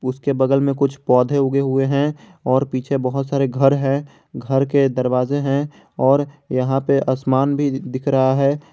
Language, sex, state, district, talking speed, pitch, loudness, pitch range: Hindi, male, Jharkhand, Garhwa, 180 wpm, 135 Hz, -19 LUFS, 130-140 Hz